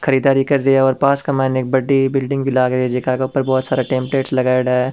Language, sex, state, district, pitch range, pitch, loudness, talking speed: Rajasthani, male, Rajasthan, Churu, 130-135 Hz, 130 Hz, -16 LUFS, 290 wpm